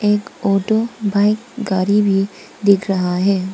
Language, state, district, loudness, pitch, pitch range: Hindi, Arunachal Pradesh, Papum Pare, -17 LUFS, 200 Hz, 195-210 Hz